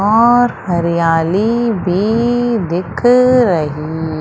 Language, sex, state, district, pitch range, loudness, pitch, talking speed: Hindi, female, Madhya Pradesh, Umaria, 170-240 Hz, -14 LUFS, 200 Hz, 70 wpm